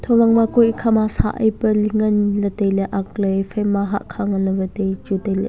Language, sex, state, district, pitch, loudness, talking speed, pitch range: Wancho, male, Arunachal Pradesh, Longding, 205 Hz, -19 LUFS, 230 wpm, 195-220 Hz